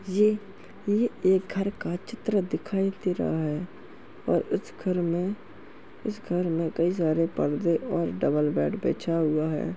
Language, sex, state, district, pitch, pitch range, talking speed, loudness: Hindi, male, Uttar Pradesh, Jalaun, 180 Hz, 160-200 Hz, 155 wpm, -27 LUFS